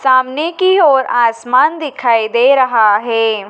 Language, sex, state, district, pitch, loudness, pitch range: Hindi, female, Madhya Pradesh, Dhar, 255 Hz, -12 LUFS, 230-280 Hz